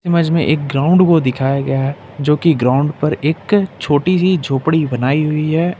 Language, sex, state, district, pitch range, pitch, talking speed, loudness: Hindi, male, Jharkhand, Ranchi, 140-165 Hz, 150 Hz, 195 wpm, -15 LUFS